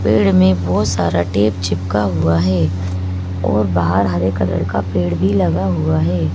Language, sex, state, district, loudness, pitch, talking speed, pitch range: Hindi, male, Madhya Pradesh, Bhopal, -16 LUFS, 90 Hz, 170 wpm, 85-95 Hz